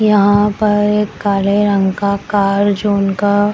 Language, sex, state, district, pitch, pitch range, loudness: Hindi, female, Bihar, Madhepura, 205 Hz, 200-205 Hz, -14 LUFS